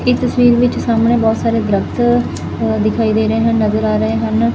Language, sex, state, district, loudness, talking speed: Punjabi, female, Punjab, Fazilka, -14 LUFS, 195 wpm